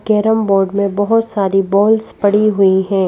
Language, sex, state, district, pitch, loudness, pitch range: Hindi, female, Madhya Pradesh, Bhopal, 200 Hz, -14 LUFS, 195-215 Hz